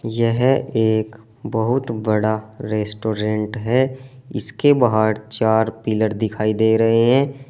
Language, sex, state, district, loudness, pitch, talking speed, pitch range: Hindi, male, Uttar Pradesh, Saharanpur, -19 LUFS, 110 Hz, 110 wpm, 110-125 Hz